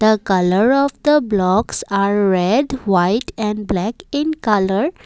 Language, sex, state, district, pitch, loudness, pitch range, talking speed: English, female, Assam, Kamrup Metropolitan, 215 Hz, -17 LUFS, 195-265 Hz, 140 wpm